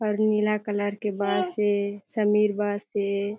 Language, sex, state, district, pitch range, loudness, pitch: Chhattisgarhi, female, Chhattisgarh, Jashpur, 200-210 Hz, -25 LUFS, 205 Hz